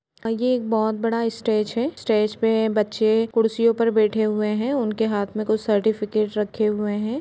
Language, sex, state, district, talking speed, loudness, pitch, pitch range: Hindi, female, Uttar Pradesh, Jalaun, 190 wpm, -22 LUFS, 220 Hz, 215-230 Hz